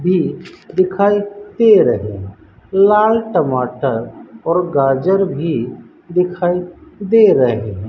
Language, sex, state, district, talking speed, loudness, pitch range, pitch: Hindi, male, Rajasthan, Bikaner, 105 wpm, -15 LUFS, 125-200 Hz, 175 Hz